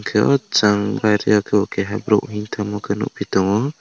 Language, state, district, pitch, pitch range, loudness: Kokborok, Tripura, West Tripura, 105 Hz, 100-105 Hz, -19 LUFS